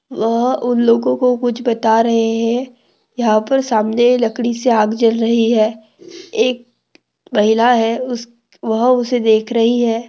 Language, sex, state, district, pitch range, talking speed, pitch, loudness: Hindi, female, Maharashtra, Dhule, 225-245 Hz, 155 wpm, 235 Hz, -15 LUFS